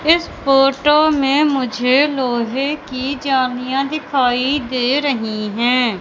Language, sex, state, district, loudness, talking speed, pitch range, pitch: Hindi, male, Madhya Pradesh, Katni, -16 LUFS, 110 wpm, 250-285 Hz, 270 Hz